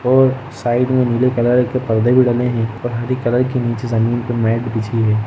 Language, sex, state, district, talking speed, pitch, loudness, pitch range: Hindi, male, Jharkhand, Jamtara, 230 wpm, 120 Hz, -17 LUFS, 115-125 Hz